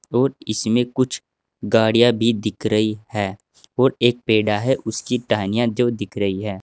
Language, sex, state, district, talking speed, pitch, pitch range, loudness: Hindi, male, Uttar Pradesh, Saharanpur, 165 wpm, 110 Hz, 105-120 Hz, -20 LUFS